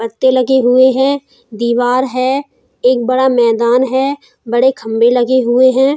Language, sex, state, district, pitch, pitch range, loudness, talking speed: Hindi, female, Uttar Pradesh, Hamirpur, 255 Hz, 240-260 Hz, -13 LUFS, 150 wpm